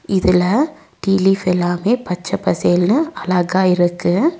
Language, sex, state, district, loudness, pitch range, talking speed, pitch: Tamil, female, Tamil Nadu, Nilgiris, -16 LUFS, 180-225 Hz, 110 wpm, 185 Hz